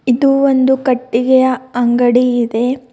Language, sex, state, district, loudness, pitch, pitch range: Kannada, female, Karnataka, Bidar, -13 LUFS, 255 Hz, 245-260 Hz